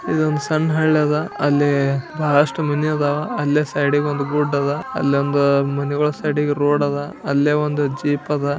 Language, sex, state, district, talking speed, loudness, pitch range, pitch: Kannada, male, Karnataka, Bijapur, 85 wpm, -19 LUFS, 145-150 Hz, 145 Hz